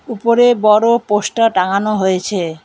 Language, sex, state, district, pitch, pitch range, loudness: Bengali, female, West Bengal, Alipurduar, 210 Hz, 190-235 Hz, -14 LUFS